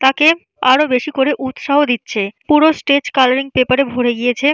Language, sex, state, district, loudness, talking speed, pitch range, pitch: Bengali, female, West Bengal, Jalpaiguri, -14 LUFS, 170 wpm, 255-290 Hz, 265 Hz